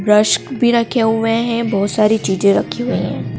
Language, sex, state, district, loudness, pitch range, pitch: Hindi, female, Madhya Pradesh, Dhar, -16 LUFS, 210-235 Hz, 225 Hz